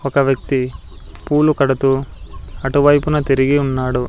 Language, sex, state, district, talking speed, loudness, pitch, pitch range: Telugu, male, Andhra Pradesh, Sri Satya Sai, 100 wpm, -16 LUFS, 135 Hz, 125-140 Hz